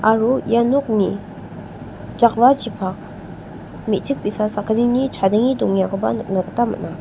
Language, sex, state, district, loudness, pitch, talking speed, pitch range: Garo, female, Meghalaya, West Garo Hills, -18 LUFS, 220 Hz, 105 wpm, 205-240 Hz